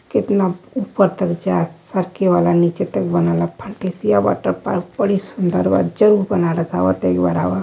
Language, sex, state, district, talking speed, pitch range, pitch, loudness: Hindi, male, Uttar Pradesh, Varanasi, 180 wpm, 165-195 Hz, 180 Hz, -18 LUFS